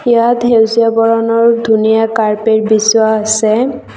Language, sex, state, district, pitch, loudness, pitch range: Assamese, female, Assam, Kamrup Metropolitan, 225 Hz, -11 LUFS, 220-230 Hz